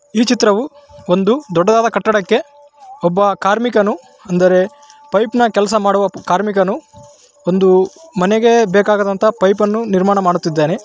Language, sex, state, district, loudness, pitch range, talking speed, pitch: Kannada, male, Karnataka, Raichur, -14 LUFS, 190-235 Hz, 105 wpm, 210 Hz